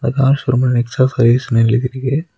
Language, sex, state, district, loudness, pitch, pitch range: Tamil, male, Tamil Nadu, Nilgiris, -15 LUFS, 125 Hz, 120-135 Hz